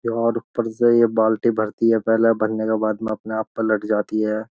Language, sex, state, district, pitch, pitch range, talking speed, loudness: Hindi, male, Uttar Pradesh, Jyotiba Phule Nagar, 110 Hz, 110-115 Hz, 225 wpm, -20 LUFS